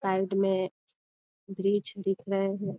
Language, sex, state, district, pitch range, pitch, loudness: Hindi, female, Bihar, Jamui, 190-195 Hz, 195 Hz, -29 LUFS